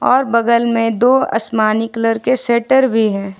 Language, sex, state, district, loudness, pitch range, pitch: Hindi, female, Jharkhand, Ranchi, -14 LUFS, 225-250 Hz, 230 Hz